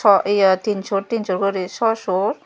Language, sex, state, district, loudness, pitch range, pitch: Chakma, female, Tripura, Dhalai, -19 LUFS, 190-210 Hz, 200 Hz